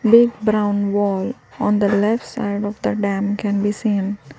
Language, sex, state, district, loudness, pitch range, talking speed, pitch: English, female, Gujarat, Valsad, -19 LUFS, 200-215 Hz, 180 wpm, 205 Hz